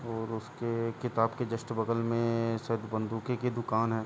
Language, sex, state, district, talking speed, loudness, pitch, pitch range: Hindi, male, Uttar Pradesh, Jalaun, 175 wpm, -32 LUFS, 115 Hz, 110-115 Hz